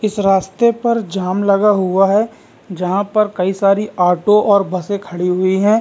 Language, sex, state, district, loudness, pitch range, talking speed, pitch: Hindi, male, Bihar, Vaishali, -15 LUFS, 185-210 Hz, 185 wpm, 200 Hz